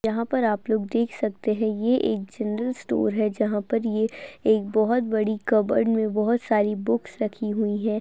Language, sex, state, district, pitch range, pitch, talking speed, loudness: Hindi, male, Uttar Pradesh, Jalaun, 215-230 Hz, 220 Hz, 195 wpm, -24 LUFS